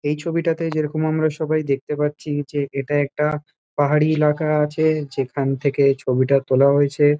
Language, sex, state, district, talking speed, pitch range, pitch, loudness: Bengali, male, West Bengal, Kolkata, 150 wpm, 140-155 Hz, 150 Hz, -20 LUFS